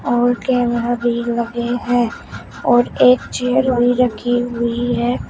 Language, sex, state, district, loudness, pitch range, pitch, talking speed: Hindi, female, Uttar Pradesh, Shamli, -17 LUFS, 235-245 Hz, 240 Hz, 135 wpm